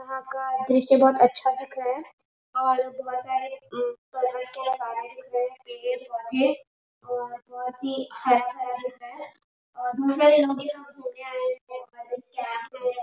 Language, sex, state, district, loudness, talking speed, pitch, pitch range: Hindi, female, Chhattisgarh, Raigarh, -26 LUFS, 100 wpm, 260 Hz, 250-270 Hz